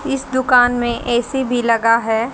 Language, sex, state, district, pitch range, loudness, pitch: Hindi, female, Haryana, Charkhi Dadri, 230-260 Hz, -16 LUFS, 245 Hz